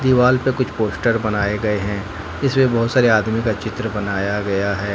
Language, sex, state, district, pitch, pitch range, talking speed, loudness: Hindi, male, Jharkhand, Ranchi, 110 Hz, 100-120 Hz, 195 wpm, -19 LUFS